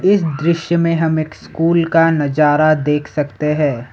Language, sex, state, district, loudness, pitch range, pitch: Hindi, male, Assam, Sonitpur, -15 LUFS, 150-165 Hz, 155 Hz